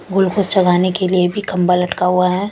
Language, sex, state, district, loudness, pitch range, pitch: Hindi, female, Chandigarh, Chandigarh, -15 LUFS, 180-190 Hz, 185 Hz